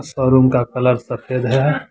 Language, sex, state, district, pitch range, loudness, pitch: Hindi, male, Jharkhand, Deoghar, 125-135 Hz, -16 LUFS, 130 Hz